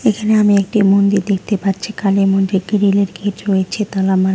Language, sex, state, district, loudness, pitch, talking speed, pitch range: Bengali, female, West Bengal, Alipurduar, -15 LUFS, 200 Hz, 195 wpm, 195-205 Hz